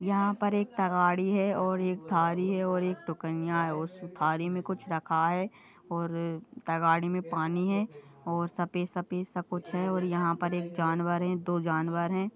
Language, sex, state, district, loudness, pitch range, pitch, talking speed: Hindi, female, Goa, North and South Goa, -30 LUFS, 165-185 Hz, 175 Hz, 190 wpm